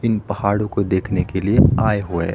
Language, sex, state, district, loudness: Hindi, male, Himachal Pradesh, Shimla, -18 LUFS